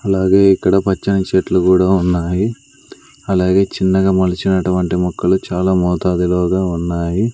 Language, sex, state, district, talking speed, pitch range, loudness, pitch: Telugu, male, Andhra Pradesh, Sri Satya Sai, 105 wpm, 90-95 Hz, -15 LUFS, 95 Hz